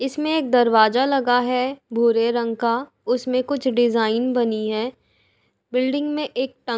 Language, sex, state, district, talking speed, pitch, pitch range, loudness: Hindi, female, Uttar Pradesh, Jalaun, 150 wpm, 245 Hz, 235-265 Hz, -21 LUFS